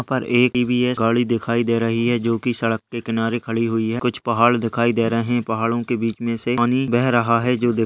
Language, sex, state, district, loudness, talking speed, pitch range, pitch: Hindi, male, Uttarakhand, Uttarkashi, -20 LUFS, 265 wpm, 115-120 Hz, 115 Hz